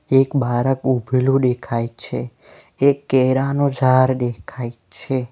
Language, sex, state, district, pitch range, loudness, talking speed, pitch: Gujarati, male, Gujarat, Valsad, 120-135 Hz, -19 LUFS, 115 wpm, 130 Hz